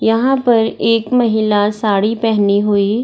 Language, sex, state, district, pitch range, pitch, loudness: Hindi, female, Bihar, Darbhanga, 205-230 Hz, 220 Hz, -14 LUFS